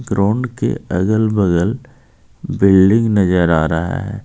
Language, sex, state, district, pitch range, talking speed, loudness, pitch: Hindi, male, Jharkhand, Ranchi, 90-115 Hz, 115 wpm, -15 LUFS, 100 Hz